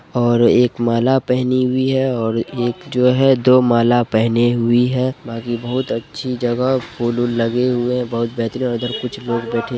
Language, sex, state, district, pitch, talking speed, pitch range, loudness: Hindi, male, Bihar, Purnia, 120 Hz, 180 wpm, 120-125 Hz, -17 LUFS